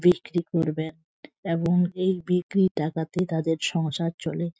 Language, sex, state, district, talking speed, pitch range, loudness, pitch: Bengali, female, West Bengal, Jhargram, 115 wpm, 160-180 Hz, -26 LUFS, 170 Hz